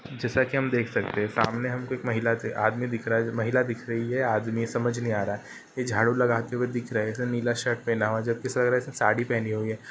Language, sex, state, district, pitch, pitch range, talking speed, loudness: Hindi, male, Uttar Pradesh, Ghazipur, 120 Hz, 115-125 Hz, 265 wpm, -27 LUFS